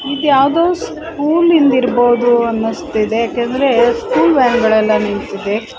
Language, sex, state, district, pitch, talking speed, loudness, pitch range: Kannada, female, Karnataka, Raichur, 245 Hz, 115 wpm, -13 LUFS, 225-280 Hz